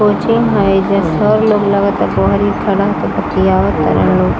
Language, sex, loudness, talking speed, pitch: Bhojpuri, female, -13 LUFS, 165 wpm, 195 Hz